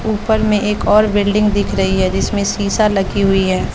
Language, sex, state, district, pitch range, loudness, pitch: Hindi, female, Bihar, West Champaran, 195-210 Hz, -15 LUFS, 205 Hz